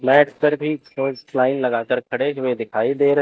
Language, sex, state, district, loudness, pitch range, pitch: Hindi, male, Chandigarh, Chandigarh, -20 LUFS, 125-145 Hz, 135 Hz